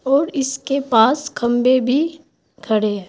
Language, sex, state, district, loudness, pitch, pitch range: Hindi, female, Uttar Pradesh, Saharanpur, -18 LUFS, 260 Hz, 240-280 Hz